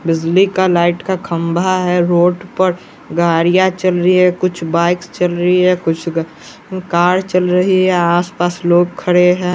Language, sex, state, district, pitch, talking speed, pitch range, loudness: Hindi, male, Bihar, West Champaran, 180 Hz, 170 wpm, 170-185 Hz, -14 LUFS